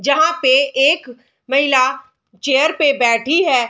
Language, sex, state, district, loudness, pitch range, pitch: Hindi, female, Bihar, Sitamarhi, -15 LUFS, 255-290 Hz, 270 Hz